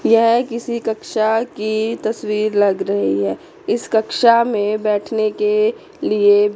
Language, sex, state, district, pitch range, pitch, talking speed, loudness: Hindi, female, Chandigarh, Chandigarh, 210-235 Hz, 220 Hz, 130 wpm, -17 LUFS